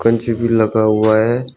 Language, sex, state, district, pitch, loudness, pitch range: Hindi, male, Uttar Pradesh, Shamli, 115 Hz, -15 LUFS, 110-115 Hz